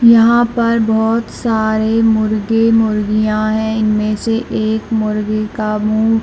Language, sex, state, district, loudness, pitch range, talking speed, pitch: Hindi, female, Chhattisgarh, Bilaspur, -14 LUFS, 215-225 Hz, 125 wpm, 220 Hz